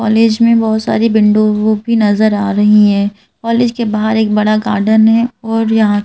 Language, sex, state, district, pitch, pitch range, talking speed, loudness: Hindi, female, Madhya Pradesh, Bhopal, 220 Hz, 210-225 Hz, 190 wpm, -12 LUFS